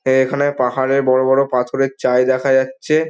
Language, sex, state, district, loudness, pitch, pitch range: Bengali, male, West Bengal, Dakshin Dinajpur, -16 LUFS, 130 Hz, 130-140 Hz